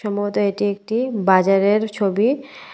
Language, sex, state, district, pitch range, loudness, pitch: Bengali, female, Tripura, West Tripura, 200-220 Hz, -19 LUFS, 205 Hz